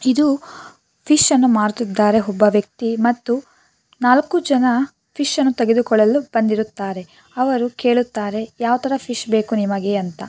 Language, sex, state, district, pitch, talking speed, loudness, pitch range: Kannada, female, Karnataka, Bangalore, 240 Hz, 115 wpm, -18 LUFS, 215-260 Hz